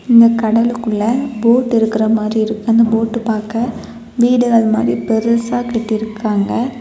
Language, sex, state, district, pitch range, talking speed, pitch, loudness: Tamil, female, Tamil Nadu, Kanyakumari, 220-235 Hz, 125 wpm, 230 Hz, -15 LUFS